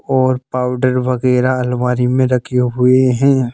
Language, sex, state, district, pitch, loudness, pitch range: Hindi, male, Madhya Pradesh, Bhopal, 125 Hz, -15 LUFS, 125-130 Hz